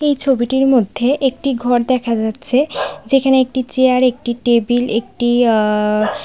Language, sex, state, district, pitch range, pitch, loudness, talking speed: Bengali, female, Tripura, West Tripura, 235-265 Hz, 245 Hz, -15 LUFS, 135 wpm